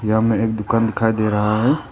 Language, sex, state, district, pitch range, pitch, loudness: Hindi, male, Arunachal Pradesh, Papum Pare, 110-115 Hz, 110 Hz, -18 LUFS